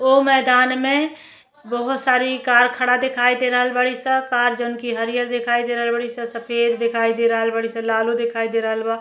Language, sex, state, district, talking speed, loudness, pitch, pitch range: Bhojpuri, female, Uttar Pradesh, Deoria, 215 wpm, -19 LUFS, 240 Hz, 235-255 Hz